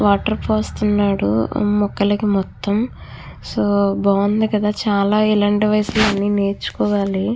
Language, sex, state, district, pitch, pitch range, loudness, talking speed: Telugu, female, Andhra Pradesh, Krishna, 205 Hz, 200-210 Hz, -18 LUFS, 100 wpm